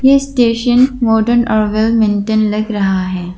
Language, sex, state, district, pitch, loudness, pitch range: Hindi, female, Arunachal Pradesh, Lower Dibang Valley, 220 Hz, -13 LUFS, 210-240 Hz